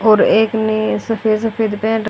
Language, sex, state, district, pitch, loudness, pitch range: Hindi, female, Haryana, Charkhi Dadri, 220 Hz, -16 LUFS, 215-220 Hz